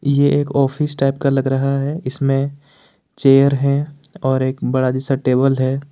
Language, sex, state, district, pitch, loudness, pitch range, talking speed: Hindi, male, Jharkhand, Ranchi, 140 Hz, -17 LUFS, 135-140 Hz, 170 wpm